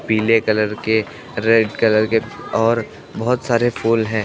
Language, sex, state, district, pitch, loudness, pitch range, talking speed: Hindi, male, Uttar Pradesh, Lucknow, 110 Hz, -18 LUFS, 110-115 Hz, 155 wpm